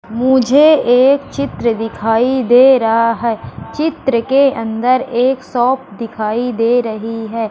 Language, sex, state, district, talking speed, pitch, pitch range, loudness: Hindi, female, Madhya Pradesh, Katni, 130 wpm, 245 Hz, 225-260 Hz, -14 LUFS